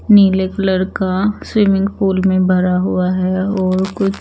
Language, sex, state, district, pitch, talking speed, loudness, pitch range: Hindi, female, Chandigarh, Chandigarh, 190 Hz, 155 wpm, -15 LUFS, 185-195 Hz